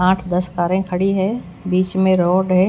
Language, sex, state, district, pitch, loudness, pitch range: Hindi, female, Chhattisgarh, Raipur, 185 Hz, -18 LUFS, 180-190 Hz